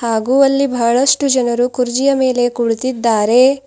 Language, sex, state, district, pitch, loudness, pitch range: Kannada, female, Karnataka, Bidar, 250 Hz, -14 LUFS, 235-270 Hz